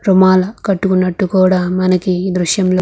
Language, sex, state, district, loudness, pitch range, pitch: Telugu, female, Andhra Pradesh, Krishna, -14 LUFS, 185-190 Hz, 185 Hz